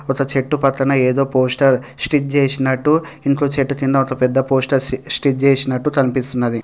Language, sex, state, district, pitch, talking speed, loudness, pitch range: Telugu, male, Telangana, Hyderabad, 135 Hz, 145 wpm, -16 LUFS, 130-140 Hz